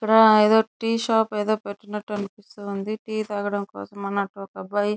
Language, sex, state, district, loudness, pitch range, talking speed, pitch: Telugu, female, Andhra Pradesh, Chittoor, -23 LUFS, 200-215 Hz, 135 wpm, 210 Hz